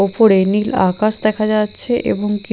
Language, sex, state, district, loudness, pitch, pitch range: Bengali, female, Odisha, Khordha, -16 LUFS, 210 Hz, 200-215 Hz